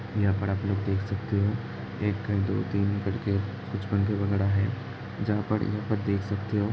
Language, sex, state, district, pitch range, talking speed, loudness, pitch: Hindi, male, Uttar Pradesh, Hamirpur, 100-105 Hz, 185 wpm, -28 LUFS, 100 Hz